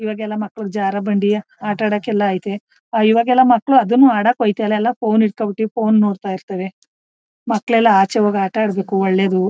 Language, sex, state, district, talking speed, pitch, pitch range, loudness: Kannada, female, Karnataka, Mysore, 145 wpm, 215 Hz, 200-225 Hz, -16 LUFS